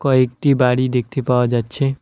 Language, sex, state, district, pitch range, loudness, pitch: Bengali, male, West Bengal, Alipurduar, 125-135 Hz, -17 LUFS, 130 Hz